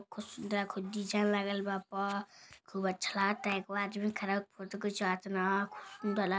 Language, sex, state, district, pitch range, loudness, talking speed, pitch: Hindi, female, Uttar Pradesh, Deoria, 195-205 Hz, -35 LUFS, 195 wpm, 200 Hz